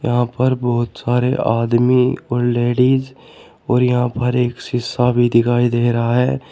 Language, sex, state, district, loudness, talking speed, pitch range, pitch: Hindi, male, Uttar Pradesh, Shamli, -17 LUFS, 155 wpm, 120-125 Hz, 125 Hz